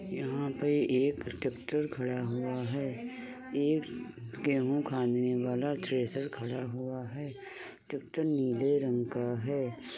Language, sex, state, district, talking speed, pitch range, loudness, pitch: Hindi, male, Uttar Pradesh, Muzaffarnagar, 120 wpm, 125-145 Hz, -33 LUFS, 135 Hz